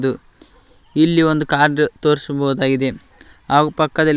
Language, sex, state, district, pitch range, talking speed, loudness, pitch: Kannada, male, Karnataka, Koppal, 140-155 Hz, 100 wpm, -17 LUFS, 150 Hz